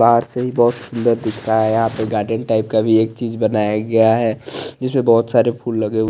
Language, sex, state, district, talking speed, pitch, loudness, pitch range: Hindi, male, Chandigarh, Chandigarh, 255 wpm, 115 Hz, -17 LUFS, 110-120 Hz